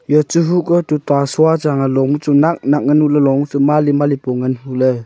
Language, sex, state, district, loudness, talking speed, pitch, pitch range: Wancho, male, Arunachal Pradesh, Longding, -14 LUFS, 250 wpm, 145 Hz, 135-150 Hz